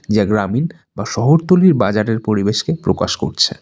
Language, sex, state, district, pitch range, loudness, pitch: Bengali, male, West Bengal, Alipurduar, 105-155 Hz, -16 LUFS, 110 Hz